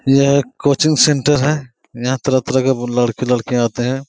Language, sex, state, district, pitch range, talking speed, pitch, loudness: Hindi, male, Jharkhand, Sahebganj, 125-140 Hz, 205 wpm, 130 Hz, -16 LUFS